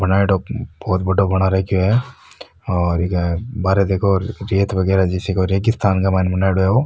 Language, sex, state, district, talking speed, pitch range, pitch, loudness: Rajasthani, male, Rajasthan, Nagaur, 185 wpm, 95-100 Hz, 95 Hz, -18 LUFS